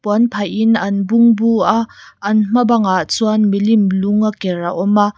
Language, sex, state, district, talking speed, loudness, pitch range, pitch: Mizo, female, Mizoram, Aizawl, 185 wpm, -14 LUFS, 200-225 Hz, 210 Hz